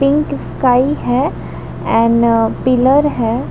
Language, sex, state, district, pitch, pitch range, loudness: Hindi, female, Jharkhand, Jamtara, 250 Hz, 230-275 Hz, -14 LUFS